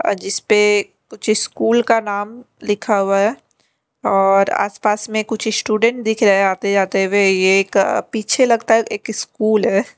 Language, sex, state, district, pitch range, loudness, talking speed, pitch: Hindi, female, Delhi, New Delhi, 195-220 Hz, -16 LUFS, 160 wpm, 210 Hz